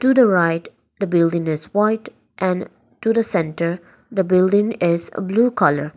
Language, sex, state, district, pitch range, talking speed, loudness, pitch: English, female, Nagaland, Dimapur, 170-215 Hz, 170 wpm, -19 LUFS, 185 Hz